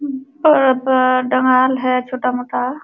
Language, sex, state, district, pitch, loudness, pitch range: Hindi, female, Uttar Pradesh, Jalaun, 255 Hz, -15 LUFS, 255-265 Hz